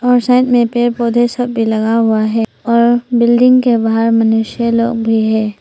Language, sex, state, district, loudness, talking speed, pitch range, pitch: Hindi, female, Arunachal Pradesh, Papum Pare, -12 LUFS, 195 wpm, 225-240 Hz, 235 Hz